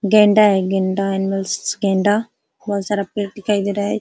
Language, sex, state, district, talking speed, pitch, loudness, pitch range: Hindi, female, Uttar Pradesh, Ghazipur, 195 wpm, 200 Hz, -18 LUFS, 195-210 Hz